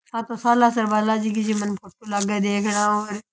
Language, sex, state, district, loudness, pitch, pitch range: Rajasthani, male, Rajasthan, Churu, -22 LUFS, 215 Hz, 205-220 Hz